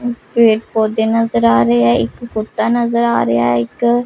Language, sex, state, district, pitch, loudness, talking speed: Hindi, female, Punjab, Pathankot, 220 Hz, -14 LUFS, 175 wpm